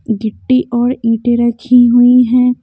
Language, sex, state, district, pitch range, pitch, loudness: Hindi, female, Haryana, Jhajjar, 235-250 Hz, 245 Hz, -11 LUFS